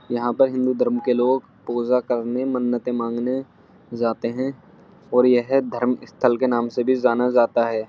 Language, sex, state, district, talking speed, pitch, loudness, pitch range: Hindi, male, Uttar Pradesh, Jyotiba Phule Nagar, 175 wpm, 125 Hz, -21 LUFS, 120-130 Hz